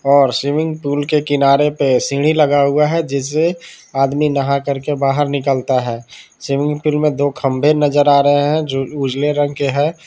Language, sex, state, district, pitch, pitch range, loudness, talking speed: Hindi, male, Jharkhand, Palamu, 145 Hz, 140-150 Hz, -15 LUFS, 185 wpm